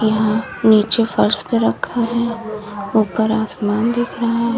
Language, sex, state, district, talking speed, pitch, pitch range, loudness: Hindi, female, Uttar Pradesh, Lalitpur, 145 wpm, 220 Hz, 215-235 Hz, -17 LUFS